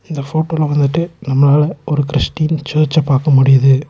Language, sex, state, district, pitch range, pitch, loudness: Tamil, male, Tamil Nadu, Nilgiris, 140-155 Hz, 150 Hz, -14 LUFS